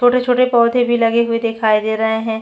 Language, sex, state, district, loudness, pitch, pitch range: Hindi, female, Chhattisgarh, Bastar, -15 LUFS, 230 Hz, 220-245 Hz